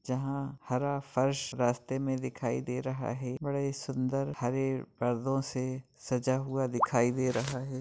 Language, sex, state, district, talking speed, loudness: Hindi, male, West Bengal, Purulia, 160 wpm, -32 LUFS